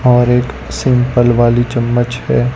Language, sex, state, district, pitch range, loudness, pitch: Hindi, male, Gujarat, Gandhinagar, 120-125 Hz, -13 LUFS, 120 Hz